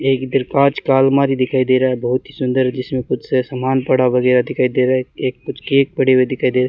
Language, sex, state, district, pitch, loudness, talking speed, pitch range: Hindi, male, Rajasthan, Bikaner, 130 Hz, -16 LUFS, 270 wpm, 125-135 Hz